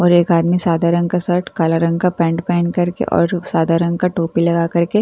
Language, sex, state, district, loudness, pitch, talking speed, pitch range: Hindi, female, Bihar, Katihar, -16 LUFS, 170 Hz, 275 wpm, 170-175 Hz